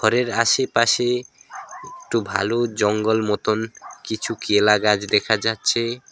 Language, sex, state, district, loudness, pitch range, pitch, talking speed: Bengali, male, West Bengal, Alipurduar, -20 LUFS, 105-120 Hz, 115 Hz, 110 wpm